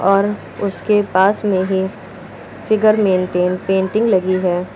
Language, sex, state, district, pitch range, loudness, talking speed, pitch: Hindi, female, Uttar Pradesh, Lucknow, 185-205 Hz, -16 LUFS, 125 wpm, 190 Hz